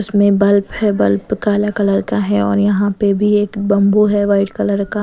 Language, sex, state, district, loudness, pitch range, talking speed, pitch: Hindi, female, Bihar, West Champaran, -15 LUFS, 195-205 Hz, 215 wpm, 200 Hz